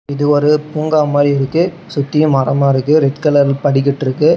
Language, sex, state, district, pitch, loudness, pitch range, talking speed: Tamil, male, Tamil Nadu, Namakkal, 145 Hz, -14 LUFS, 140-150 Hz, 165 wpm